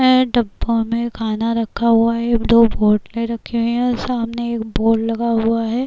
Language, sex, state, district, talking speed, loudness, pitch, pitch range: Hindi, female, Uttar Pradesh, Etah, 185 wpm, -18 LUFS, 230 Hz, 225-235 Hz